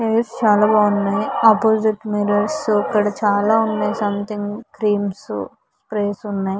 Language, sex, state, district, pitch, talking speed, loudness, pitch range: Telugu, female, Andhra Pradesh, Visakhapatnam, 210 Hz, 120 wpm, -18 LUFS, 205-220 Hz